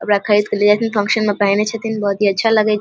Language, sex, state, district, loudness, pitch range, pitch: Maithili, female, Bihar, Vaishali, -16 LUFS, 205-215 Hz, 210 Hz